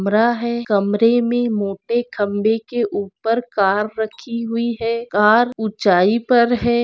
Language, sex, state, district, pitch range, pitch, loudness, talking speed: Hindi, female, Maharashtra, Aurangabad, 205-235 Hz, 230 Hz, -18 LUFS, 140 wpm